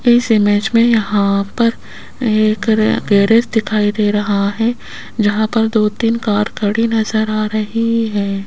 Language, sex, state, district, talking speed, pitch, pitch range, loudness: Hindi, female, Rajasthan, Jaipur, 150 wpm, 215 Hz, 205-230 Hz, -15 LUFS